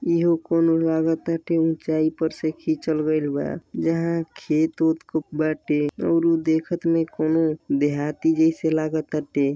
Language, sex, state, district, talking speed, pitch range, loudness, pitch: Bhojpuri, male, Uttar Pradesh, Deoria, 140 wpm, 155-165 Hz, -23 LUFS, 160 Hz